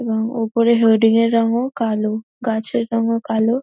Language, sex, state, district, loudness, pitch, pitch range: Bengali, female, West Bengal, North 24 Parganas, -18 LUFS, 230 Hz, 225-235 Hz